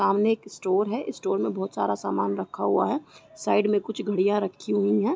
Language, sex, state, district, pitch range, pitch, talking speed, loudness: Hindi, female, Uttar Pradesh, Deoria, 185-210 Hz, 200 Hz, 220 wpm, -26 LUFS